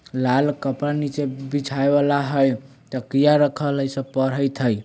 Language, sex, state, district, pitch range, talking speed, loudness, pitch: Bajjika, male, Bihar, Vaishali, 135-145 Hz, 160 wpm, -21 LUFS, 135 Hz